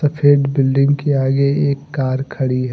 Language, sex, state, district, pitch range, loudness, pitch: Hindi, male, Jharkhand, Deoghar, 135-145 Hz, -16 LUFS, 140 Hz